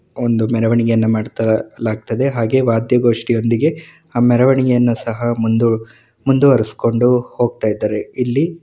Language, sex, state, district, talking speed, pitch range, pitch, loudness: Kannada, male, Karnataka, Mysore, 105 wpm, 115-125 Hz, 120 Hz, -16 LUFS